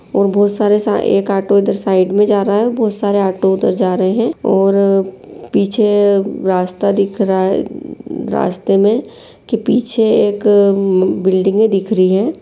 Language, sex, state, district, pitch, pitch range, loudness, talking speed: Hindi, female, Jharkhand, Sahebganj, 200 Hz, 190-205 Hz, -14 LUFS, 190 wpm